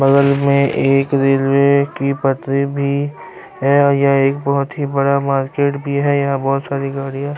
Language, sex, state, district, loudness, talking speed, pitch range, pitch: Urdu, male, Bihar, Saharsa, -16 LUFS, 170 wpm, 135-140 Hz, 140 Hz